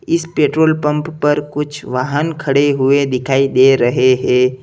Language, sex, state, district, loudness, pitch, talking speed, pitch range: Hindi, male, Uttar Pradesh, Lalitpur, -14 LUFS, 140 Hz, 155 wpm, 130-150 Hz